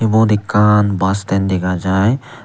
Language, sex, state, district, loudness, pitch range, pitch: Chakma, male, Tripura, Unakoti, -15 LUFS, 95-110 Hz, 105 Hz